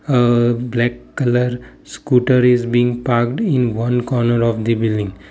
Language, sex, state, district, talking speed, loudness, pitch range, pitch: English, male, Gujarat, Valsad, 145 wpm, -17 LUFS, 120-125 Hz, 120 Hz